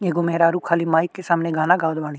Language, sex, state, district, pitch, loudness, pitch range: Bhojpuri, male, Uttar Pradesh, Ghazipur, 170 Hz, -20 LUFS, 160-170 Hz